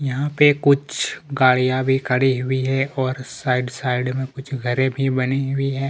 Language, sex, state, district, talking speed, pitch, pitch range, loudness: Hindi, male, Chhattisgarh, Kabirdham, 185 wpm, 135 Hz, 130-135 Hz, -20 LUFS